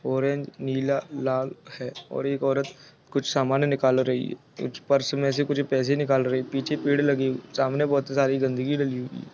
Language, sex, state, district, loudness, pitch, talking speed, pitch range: Hindi, male, Chhattisgarh, Raigarh, -25 LUFS, 135 Hz, 200 wpm, 130-140 Hz